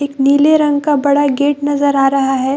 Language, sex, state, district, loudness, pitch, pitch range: Hindi, female, Bihar, Samastipur, -13 LUFS, 285 Hz, 275-290 Hz